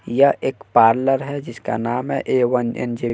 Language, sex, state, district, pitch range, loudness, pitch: Hindi, male, Bihar, West Champaran, 120-135 Hz, -19 LUFS, 125 Hz